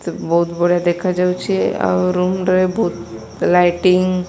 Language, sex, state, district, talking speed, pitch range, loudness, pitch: Odia, female, Odisha, Malkangiri, 140 wpm, 170-185 Hz, -16 LUFS, 180 Hz